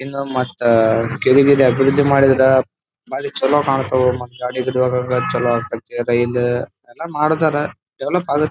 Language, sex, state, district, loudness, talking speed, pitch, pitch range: Kannada, male, Karnataka, Dharwad, -17 LUFS, 140 wpm, 130 Hz, 125-140 Hz